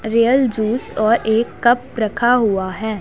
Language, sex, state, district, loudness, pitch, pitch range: Hindi, female, Punjab, Pathankot, -17 LUFS, 225 Hz, 215-240 Hz